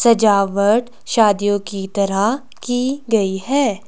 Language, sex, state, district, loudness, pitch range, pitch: Hindi, female, Himachal Pradesh, Shimla, -17 LUFS, 200-240 Hz, 215 Hz